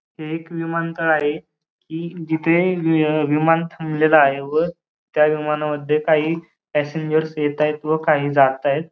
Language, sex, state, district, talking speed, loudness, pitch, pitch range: Marathi, male, Maharashtra, Pune, 120 wpm, -19 LUFS, 155 Hz, 150-165 Hz